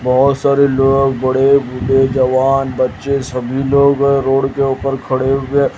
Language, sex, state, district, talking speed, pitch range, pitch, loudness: Hindi, male, Haryana, Jhajjar, 145 wpm, 130-140 Hz, 135 Hz, -14 LUFS